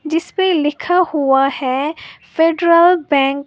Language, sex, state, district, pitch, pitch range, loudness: Hindi, female, Uttar Pradesh, Lalitpur, 315 Hz, 280-340 Hz, -15 LUFS